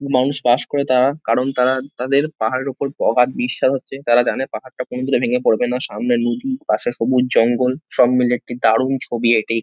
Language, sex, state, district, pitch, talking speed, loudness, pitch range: Bengali, male, West Bengal, North 24 Parganas, 130 Hz, 185 wpm, -18 LUFS, 125-140 Hz